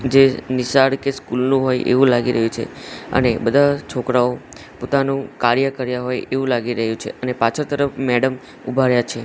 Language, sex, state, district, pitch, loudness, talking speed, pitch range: Gujarati, male, Gujarat, Gandhinagar, 130 Hz, -18 LUFS, 180 wpm, 125-135 Hz